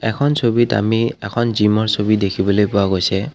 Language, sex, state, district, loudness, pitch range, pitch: Assamese, male, Assam, Kamrup Metropolitan, -17 LUFS, 100-115 Hz, 105 Hz